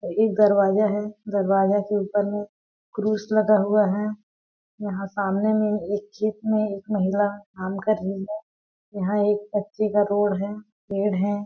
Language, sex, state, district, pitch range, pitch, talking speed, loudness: Hindi, female, Chhattisgarh, Balrampur, 200-215 Hz, 205 Hz, 160 wpm, -23 LUFS